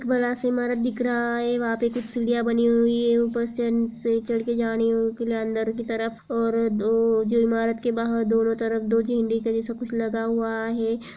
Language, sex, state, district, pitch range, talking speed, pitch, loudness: Hindi, female, Uttar Pradesh, Jalaun, 225-235 Hz, 175 wpm, 230 Hz, -24 LUFS